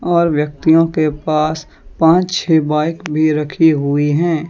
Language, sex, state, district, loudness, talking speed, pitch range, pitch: Hindi, male, Jharkhand, Deoghar, -15 LUFS, 145 wpm, 150-165 Hz, 155 Hz